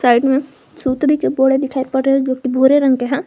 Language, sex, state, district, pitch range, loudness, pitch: Hindi, female, Jharkhand, Garhwa, 260-275 Hz, -15 LUFS, 265 Hz